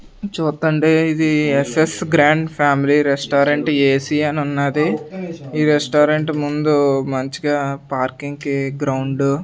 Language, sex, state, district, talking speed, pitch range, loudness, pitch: Telugu, male, Andhra Pradesh, Sri Satya Sai, 100 wpm, 140-155 Hz, -17 LUFS, 145 Hz